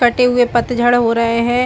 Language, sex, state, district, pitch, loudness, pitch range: Hindi, female, Chhattisgarh, Balrampur, 240 Hz, -14 LUFS, 235-245 Hz